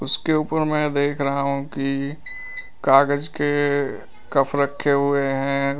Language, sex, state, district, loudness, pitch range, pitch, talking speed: Hindi, male, Uttar Pradesh, Lalitpur, -21 LUFS, 140-145 Hz, 140 Hz, 135 wpm